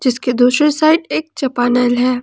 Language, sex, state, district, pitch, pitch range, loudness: Hindi, female, Jharkhand, Ranchi, 255 Hz, 245-295 Hz, -14 LUFS